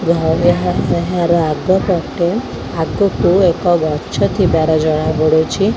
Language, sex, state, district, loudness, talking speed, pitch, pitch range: Odia, female, Odisha, Khordha, -15 LUFS, 125 wpm, 170 Hz, 160-185 Hz